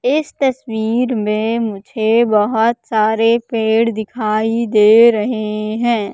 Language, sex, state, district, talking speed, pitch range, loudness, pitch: Hindi, female, Madhya Pradesh, Katni, 105 wpm, 215-235 Hz, -15 LUFS, 225 Hz